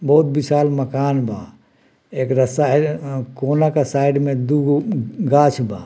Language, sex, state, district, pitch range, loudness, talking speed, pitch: Bhojpuri, male, Bihar, Muzaffarpur, 130-145 Hz, -18 LUFS, 155 wpm, 140 Hz